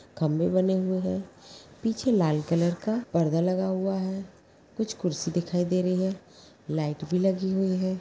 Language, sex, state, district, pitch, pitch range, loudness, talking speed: Magahi, female, Bihar, Gaya, 185 Hz, 170-190 Hz, -27 LUFS, 200 wpm